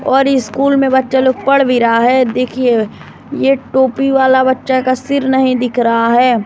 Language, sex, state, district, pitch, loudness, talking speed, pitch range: Hindi, female, Bihar, West Champaran, 260 Hz, -12 LUFS, 185 wpm, 245-265 Hz